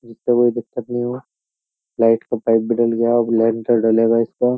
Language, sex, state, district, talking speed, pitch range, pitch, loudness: Hindi, male, Uttar Pradesh, Jyotiba Phule Nagar, 195 wpm, 115-120 Hz, 115 Hz, -18 LUFS